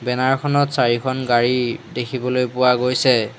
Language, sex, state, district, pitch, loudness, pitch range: Assamese, male, Assam, Hailakandi, 125 Hz, -19 LUFS, 120-130 Hz